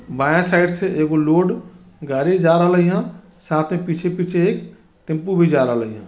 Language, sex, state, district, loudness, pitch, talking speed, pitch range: Bajjika, male, Bihar, Vaishali, -18 LUFS, 175 Hz, 170 wpm, 155-185 Hz